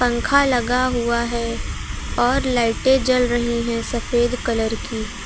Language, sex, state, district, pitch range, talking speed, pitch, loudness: Hindi, female, Uttar Pradesh, Lucknow, 235-250 Hz, 135 wpm, 240 Hz, -20 LUFS